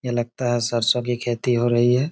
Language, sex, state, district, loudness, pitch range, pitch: Hindi, male, Jharkhand, Jamtara, -21 LUFS, 120-125 Hz, 120 Hz